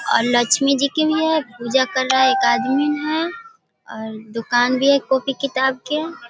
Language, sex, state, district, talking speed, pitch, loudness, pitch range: Hindi, female, Bihar, Sitamarhi, 200 wpm, 265 Hz, -18 LUFS, 245-300 Hz